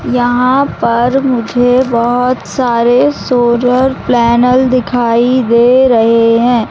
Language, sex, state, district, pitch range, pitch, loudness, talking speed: Hindi, female, Madhya Pradesh, Katni, 235-255 Hz, 245 Hz, -10 LUFS, 100 wpm